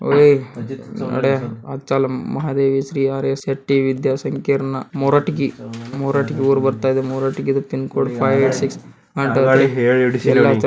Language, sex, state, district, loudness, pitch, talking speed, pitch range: Kannada, male, Karnataka, Bijapur, -18 LUFS, 135 Hz, 130 wpm, 130-135 Hz